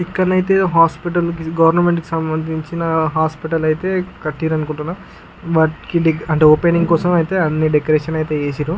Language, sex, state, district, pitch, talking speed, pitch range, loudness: Telugu, male, Andhra Pradesh, Guntur, 160 Hz, 130 wpm, 155-170 Hz, -17 LUFS